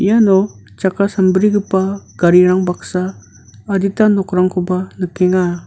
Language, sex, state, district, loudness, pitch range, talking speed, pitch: Garo, male, Meghalaya, North Garo Hills, -15 LUFS, 180-195 Hz, 85 wpm, 185 Hz